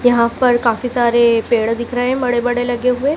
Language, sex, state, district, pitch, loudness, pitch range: Hindi, female, Madhya Pradesh, Dhar, 245 Hz, -16 LUFS, 235-250 Hz